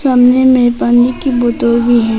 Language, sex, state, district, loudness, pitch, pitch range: Hindi, female, Arunachal Pradesh, Papum Pare, -11 LUFS, 245 Hz, 240-255 Hz